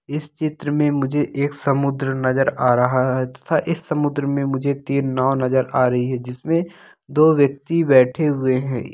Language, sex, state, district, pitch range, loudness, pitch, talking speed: Angika, male, Bihar, Madhepura, 130-150 Hz, -19 LUFS, 140 Hz, 180 wpm